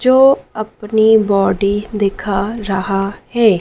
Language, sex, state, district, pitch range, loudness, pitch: Hindi, female, Madhya Pradesh, Dhar, 195-220 Hz, -15 LUFS, 210 Hz